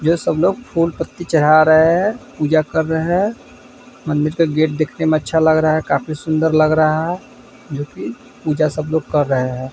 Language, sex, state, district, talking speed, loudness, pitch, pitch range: Hindi, male, Bihar, Vaishali, 205 wpm, -17 LUFS, 155 Hz, 155-165 Hz